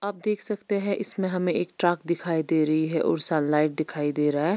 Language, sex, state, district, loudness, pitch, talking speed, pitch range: Hindi, female, Chandigarh, Chandigarh, -22 LUFS, 170 Hz, 235 wpm, 155-195 Hz